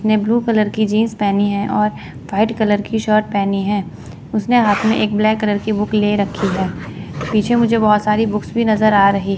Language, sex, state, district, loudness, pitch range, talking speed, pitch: Hindi, female, Chandigarh, Chandigarh, -16 LUFS, 200-220 Hz, 220 wpm, 210 Hz